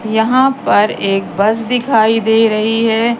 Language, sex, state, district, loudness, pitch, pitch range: Hindi, female, Madhya Pradesh, Katni, -13 LUFS, 225 Hz, 215-230 Hz